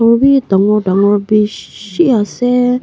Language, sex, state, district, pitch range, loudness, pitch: Nagamese, female, Nagaland, Kohima, 205-250 Hz, -12 LUFS, 220 Hz